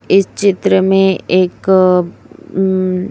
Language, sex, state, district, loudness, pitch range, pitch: Hindi, male, Chhattisgarh, Raipur, -13 LUFS, 185-195 Hz, 190 Hz